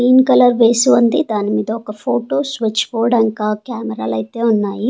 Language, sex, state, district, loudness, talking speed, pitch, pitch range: Telugu, female, Andhra Pradesh, Sri Satya Sai, -15 LUFS, 185 wpm, 230 Hz, 210-250 Hz